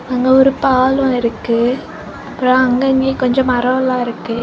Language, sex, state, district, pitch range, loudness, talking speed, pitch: Tamil, female, Tamil Nadu, Kanyakumari, 245-265 Hz, -14 LUFS, 135 wpm, 255 Hz